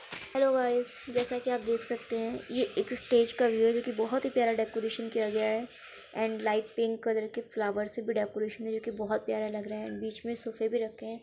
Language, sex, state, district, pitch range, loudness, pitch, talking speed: Hindi, female, Uttar Pradesh, Varanasi, 220-240 Hz, -31 LUFS, 230 Hz, 250 wpm